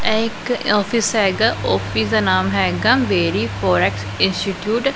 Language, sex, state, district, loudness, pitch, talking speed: Punjabi, female, Punjab, Pathankot, -18 LUFS, 205 Hz, 145 wpm